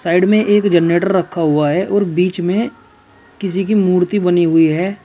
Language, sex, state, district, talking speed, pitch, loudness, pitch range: Hindi, male, Uttar Pradesh, Shamli, 190 wpm, 185 Hz, -14 LUFS, 170-200 Hz